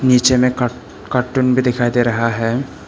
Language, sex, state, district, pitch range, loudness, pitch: Hindi, male, Arunachal Pradesh, Papum Pare, 120-130 Hz, -16 LUFS, 125 Hz